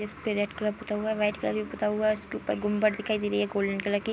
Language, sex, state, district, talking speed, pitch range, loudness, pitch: Hindi, female, Bihar, Darbhanga, 335 wpm, 205-215 Hz, -29 LUFS, 210 Hz